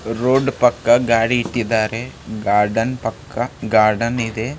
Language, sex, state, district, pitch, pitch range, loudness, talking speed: Kannada, male, Karnataka, Raichur, 115 Hz, 110-125 Hz, -18 LUFS, 105 wpm